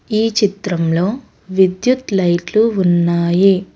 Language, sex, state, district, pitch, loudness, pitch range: Telugu, female, Telangana, Hyderabad, 190 Hz, -15 LUFS, 175-215 Hz